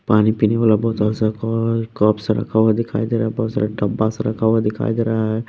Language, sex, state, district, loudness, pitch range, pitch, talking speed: Hindi, male, Bihar, West Champaran, -19 LUFS, 110-115 Hz, 110 Hz, 230 wpm